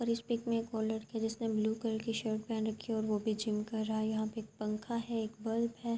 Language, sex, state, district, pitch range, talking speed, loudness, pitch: Urdu, female, Andhra Pradesh, Anantapur, 220-230 Hz, 290 wpm, -36 LUFS, 220 Hz